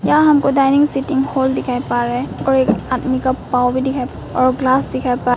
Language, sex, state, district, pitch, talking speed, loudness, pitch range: Hindi, female, Arunachal Pradesh, Papum Pare, 260 Hz, 225 wpm, -16 LUFS, 250-270 Hz